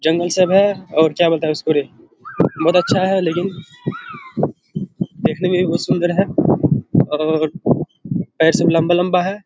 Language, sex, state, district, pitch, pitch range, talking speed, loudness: Hindi, male, Bihar, Kishanganj, 175 Hz, 160-185 Hz, 150 wpm, -17 LUFS